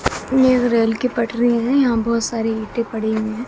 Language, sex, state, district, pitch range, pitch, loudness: Hindi, female, Bihar, West Champaran, 225-245 Hz, 235 Hz, -18 LUFS